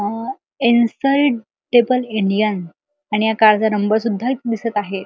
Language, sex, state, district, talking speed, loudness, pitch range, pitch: Marathi, male, Maharashtra, Chandrapur, 155 wpm, -17 LUFS, 210-250 Hz, 225 Hz